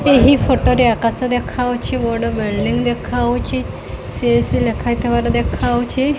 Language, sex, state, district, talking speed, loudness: Odia, female, Odisha, Khordha, 135 wpm, -17 LUFS